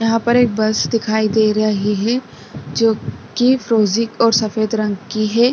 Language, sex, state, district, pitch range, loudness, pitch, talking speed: Hindi, female, Bihar, Saharsa, 215-230 Hz, -17 LUFS, 220 Hz, 175 wpm